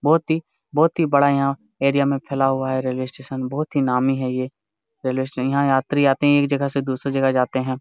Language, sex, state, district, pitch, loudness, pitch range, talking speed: Hindi, male, Jharkhand, Jamtara, 135 Hz, -21 LUFS, 130-140 Hz, 245 wpm